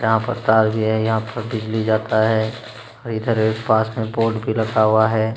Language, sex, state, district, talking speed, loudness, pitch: Hindi, male, Uttar Pradesh, Jalaun, 210 wpm, -19 LUFS, 110 Hz